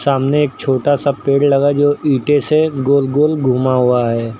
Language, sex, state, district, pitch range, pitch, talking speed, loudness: Hindi, male, Uttar Pradesh, Lucknow, 130-145 Hz, 140 Hz, 190 wpm, -14 LUFS